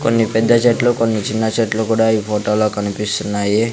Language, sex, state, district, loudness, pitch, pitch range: Telugu, male, Andhra Pradesh, Sri Satya Sai, -16 LUFS, 110 Hz, 105-115 Hz